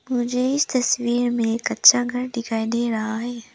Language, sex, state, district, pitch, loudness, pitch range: Hindi, female, Arunachal Pradesh, Lower Dibang Valley, 240 Hz, -21 LUFS, 230-250 Hz